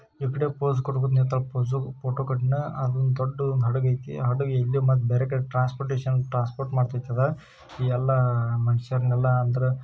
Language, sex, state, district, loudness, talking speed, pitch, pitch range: Kannada, male, Karnataka, Shimoga, -25 LUFS, 75 wpm, 130 Hz, 125-135 Hz